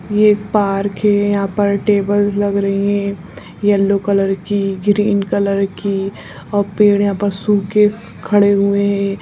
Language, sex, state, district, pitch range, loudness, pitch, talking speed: Hindi, female, Bihar, Jahanabad, 195-205 Hz, -15 LUFS, 200 Hz, 155 wpm